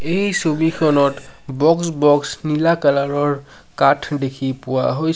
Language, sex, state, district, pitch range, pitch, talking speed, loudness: Assamese, male, Assam, Sonitpur, 140-160 Hz, 145 Hz, 130 wpm, -18 LUFS